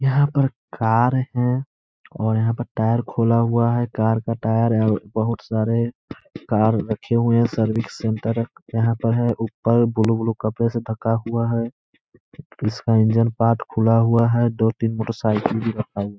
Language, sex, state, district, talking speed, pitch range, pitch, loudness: Hindi, male, Bihar, Gaya, 175 wpm, 110-115 Hz, 115 Hz, -21 LUFS